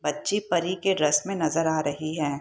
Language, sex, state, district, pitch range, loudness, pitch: Hindi, female, Bihar, Saharsa, 150-185 Hz, -25 LUFS, 160 Hz